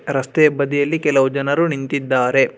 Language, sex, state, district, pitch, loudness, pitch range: Kannada, male, Karnataka, Bangalore, 140 Hz, -17 LUFS, 135-150 Hz